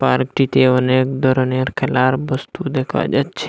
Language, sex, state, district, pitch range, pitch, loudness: Bengali, male, Assam, Hailakandi, 130-135 Hz, 130 Hz, -17 LUFS